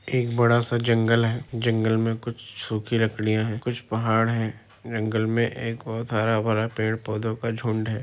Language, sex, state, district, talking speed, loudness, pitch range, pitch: Hindi, male, Bihar, Madhepura, 170 wpm, -25 LUFS, 110-115 Hz, 115 Hz